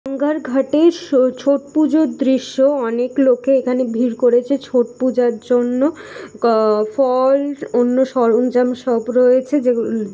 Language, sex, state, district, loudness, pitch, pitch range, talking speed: Bengali, female, West Bengal, Jhargram, -16 LUFS, 255 Hz, 245-275 Hz, 110 wpm